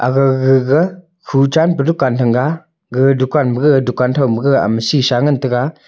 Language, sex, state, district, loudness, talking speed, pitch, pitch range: Wancho, male, Arunachal Pradesh, Longding, -14 LUFS, 155 wpm, 135 Hz, 125-150 Hz